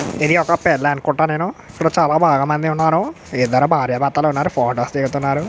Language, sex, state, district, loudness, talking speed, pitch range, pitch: Telugu, male, Telangana, Karimnagar, -17 LUFS, 185 wpm, 140-160 Hz, 150 Hz